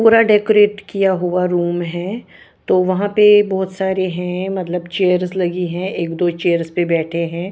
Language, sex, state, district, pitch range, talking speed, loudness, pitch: Hindi, female, Bihar, Patna, 175-195 Hz, 175 wpm, -17 LUFS, 180 Hz